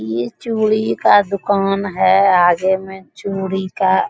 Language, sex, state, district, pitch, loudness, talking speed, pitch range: Hindi, female, Bihar, Bhagalpur, 190 Hz, -16 LUFS, 145 wpm, 185-200 Hz